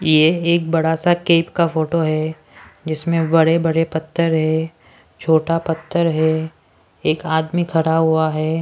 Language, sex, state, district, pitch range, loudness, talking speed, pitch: Hindi, female, Maharashtra, Washim, 160-165 Hz, -18 LUFS, 145 wpm, 160 Hz